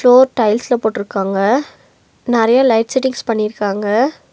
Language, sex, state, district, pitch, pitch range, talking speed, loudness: Tamil, female, Tamil Nadu, Nilgiris, 230 Hz, 210-255 Hz, 95 wpm, -15 LUFS